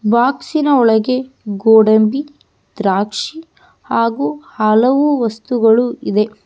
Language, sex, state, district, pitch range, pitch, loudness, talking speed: Kannada, female, Karnataka, Bangalore, 215-255 Hz, 230 Hz, -14 LUFS, 75 wpm